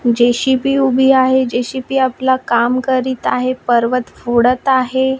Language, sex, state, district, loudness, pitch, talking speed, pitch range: Marathi, female, Maharashtra, Washim, -14 LUFS, 255 Hz, 125 wpm, 240-260 Hz